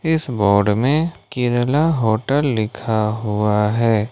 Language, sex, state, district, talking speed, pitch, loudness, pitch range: Hindi, male, Jharkhand, Ranchi, 115 wpm, 115 Hz, -18 LUFS, 105-140 Hz